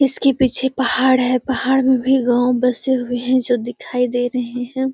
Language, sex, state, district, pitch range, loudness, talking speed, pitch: Magahi, female, Bihar, Gaya, 245-265 Hz, -17 LUFS, 195 wpm, 255 Hz